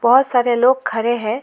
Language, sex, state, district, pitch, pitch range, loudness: Hindi, female, West Bengal, Alipurduar, 240 Hz, 235-255 Hz, -16 LUFS